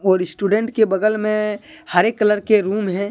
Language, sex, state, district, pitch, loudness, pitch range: Hindi, male, Jharkhand, Deoghar, 210 Hz, -18 LUFS, 200-215 Hz